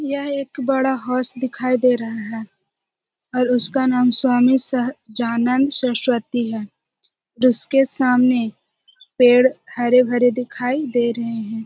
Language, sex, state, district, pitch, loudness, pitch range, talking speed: Hindi, female, Bihar, Jahanabad, 250 Hz, -16 LUFS, 240-260 Hz, 125 wpm